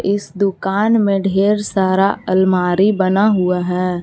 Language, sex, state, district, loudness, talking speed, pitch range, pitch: Hindi, female, Jharkhand, Garhwa, -16 LUFS, 135 wpm, 185-200 Hz, 195 Hz